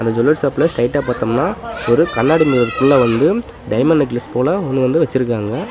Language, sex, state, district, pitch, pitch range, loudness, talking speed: Tamil, male, Tamil Nadu, Namakkal, 130 Hz, 120-160 Hz, -16 LUFS, 160 wpm